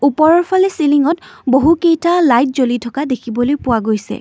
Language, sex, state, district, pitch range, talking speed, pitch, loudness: Assamese, female, Assam, Kamrup Metropolitan, 245-330 Hz, 155 wpm, 285 Hz, -14 LUFS